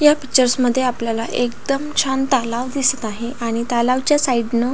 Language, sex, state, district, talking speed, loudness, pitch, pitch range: Marathi, female, Maharashtra, Pune, 175 wpm, -18 LUFS, 250 Hz, 235-270 Hz